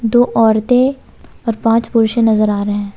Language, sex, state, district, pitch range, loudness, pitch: Hindi, female, Jharkhand, Ranchi, 215-235 Hz, -14 LUFS, 225 Hz